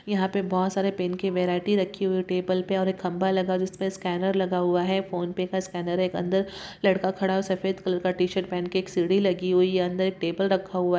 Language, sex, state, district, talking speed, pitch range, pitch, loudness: Hindi, female, Andhra Pradesh, Guntur, 255 wpm, 180-190 Hz, 185 Hz, -26 LUFS